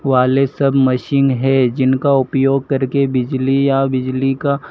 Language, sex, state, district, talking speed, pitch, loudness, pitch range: Hindi, male, Madhya Pradesh, Dhar, 140 wpm, 135 Hz, -15 LUFS, 130-135 Hz